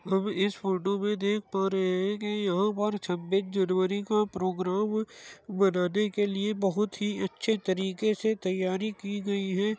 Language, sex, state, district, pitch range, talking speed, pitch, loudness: Hindi, male, Uttar Pradesh, Muzaffarnagar, 190-210 Hz, 165 wpm, 200 Hz, -29 LUFS